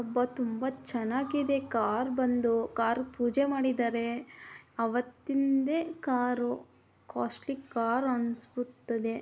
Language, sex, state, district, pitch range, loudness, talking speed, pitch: Kannada, female, Karnataka, Mysore, 235-270 Hz, -31 LUFS, 100 wpm, 245 Hz